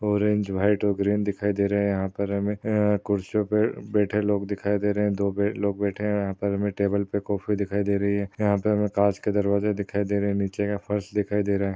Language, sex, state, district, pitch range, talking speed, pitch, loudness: Hindi, male, Maharashtra, Sindhudurg, 100-105 Hz, 235 wpm, 100 Hz, -25 LUFS